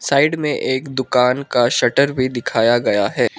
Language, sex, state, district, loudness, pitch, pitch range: Hindi, male, Arunachal Pradesh, Lower Dibang Valley, -17 LUFS, 130 Hz, 120-140 Hz